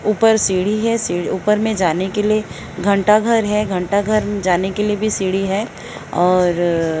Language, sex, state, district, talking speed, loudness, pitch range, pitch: Hindi, female, Odisha, Sambalpur, 165 wpm, -17 LUFS, 185-215 Hz, 200 Hz